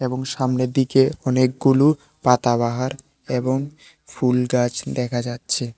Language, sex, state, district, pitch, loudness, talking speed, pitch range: Bengali, male, Tripura, West Tripura, 130 Hz, -20 LUFS, 105 wpm, 125-135 Hz